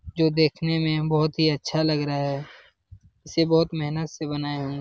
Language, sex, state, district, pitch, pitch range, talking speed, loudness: Hindi, male, Bihar, Lakhisarai, 155 Hz, 140-160 Hz, 200 wpm, -24 LUFS